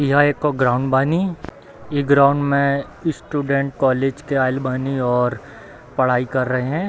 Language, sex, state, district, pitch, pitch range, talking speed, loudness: Hindi, male, Bihar, Darbhanga, 135 Hz, 130-145 Hz, 165 wpm, -19 LUFS